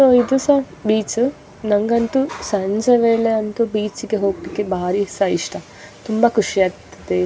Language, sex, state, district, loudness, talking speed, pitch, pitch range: Kannada, female, Karnataka, Dakshina Kannada, -19 LUFS, 105 wpm, 215 Hz, 200-235 Hz